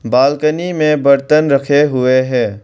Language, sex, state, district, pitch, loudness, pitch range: Hindi, male, Arunachal Pradesh, Longding, 140 Hz, -13 LUFS, 130-150 Hz